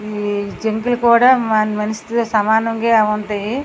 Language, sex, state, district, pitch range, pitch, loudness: Telugu, female, Andhra Pradesh, Srikakulam, 210-235 Hz, 220 Hz, -16 LUFS